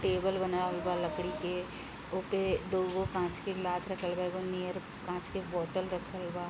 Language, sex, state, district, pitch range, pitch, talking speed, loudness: Bhojpuri, female, Uttar Pradesh, Gorakhpur, 180-185 Hz, 180 Hz, 185 wpm, -35 LUFS